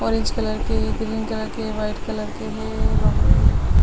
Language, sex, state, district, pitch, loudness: Hindi, female, Maharashtra, Mumbai Suburban, 110 Hz, -23 LUFS